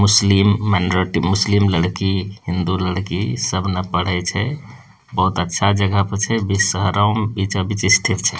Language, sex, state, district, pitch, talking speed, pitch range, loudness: Angika, male, Bihar, Bhagalpur, 100 Hz, 145 wpm, 90-105 Hz, -18 LUFS